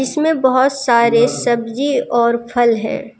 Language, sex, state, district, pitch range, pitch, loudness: Hindi, female, Jharkhand, Deoghar, 235-265 Hz, 240 Hz, -15 LUFS